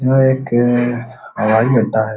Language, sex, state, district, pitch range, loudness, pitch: Hindi, male, Uttar Pradesh, Muzaffarnagar, 110-130 Hz, -15 LUFS, 120 Hz